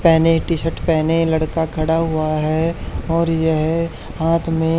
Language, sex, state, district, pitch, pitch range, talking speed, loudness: Hindi, male, Haryana, Charkhi Dadri, 165 Hz, 160-165 Hz, 140 wpm, -18 LUFS